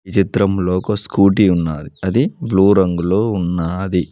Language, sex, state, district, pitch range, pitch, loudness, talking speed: Telugu, male, Telangana, Mahabubabad, 90-100 Hz, 95 Hz, -16 LUFS, 115 wpm